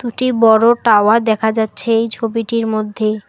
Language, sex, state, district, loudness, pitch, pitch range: Bengali, female, West Bengal, Alipurduar, -14 LUFS, 225 Hz, 220-230 Hz